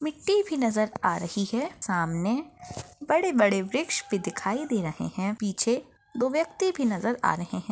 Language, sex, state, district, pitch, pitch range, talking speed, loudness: Hindi, female, Chhattisgarh, Bastar, 225 Hz, 195-290 Hz, 180 wpm, -27 LUFS